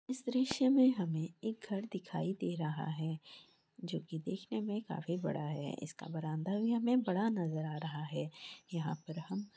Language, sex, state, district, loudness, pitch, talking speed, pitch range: Hindi, female, Jharkhand, Jamtara, -37 LUFS, 180 Hz, 170 wpm, 160-215 Hz